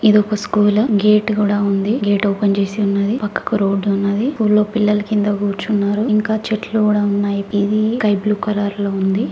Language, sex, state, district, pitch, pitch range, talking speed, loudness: Telugu, female, Telangana, Karimnagar, 210 Hz, 200-215 Hz, 180 wpm, -17 LUFS